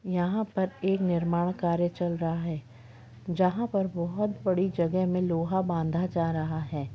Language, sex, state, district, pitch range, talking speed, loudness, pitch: Hindi, female, Chhattisgarh, Rajnandgaon, 165-185 Hz, 165 wpm, -29 LUFS, 175 Hz